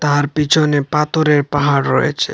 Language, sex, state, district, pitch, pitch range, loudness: Bengali, male, Assam, Hailakandi, 145 Hz, 145-150 Hz, -15 LUFS